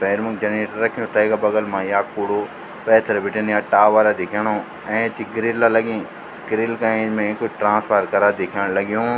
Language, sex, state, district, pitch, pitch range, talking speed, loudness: Garhwali, male, Uttarakhand, Tehri Garhwal, 110 Hz, 105-115 Hz, 170 wpm, -19 LUFS